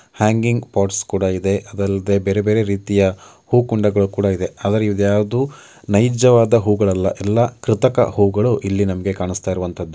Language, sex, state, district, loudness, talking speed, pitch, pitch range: Kannada, male, Karnataka, Mysore, -17 LUFS, 140 wpm, 100 Hz, 100-115 Hz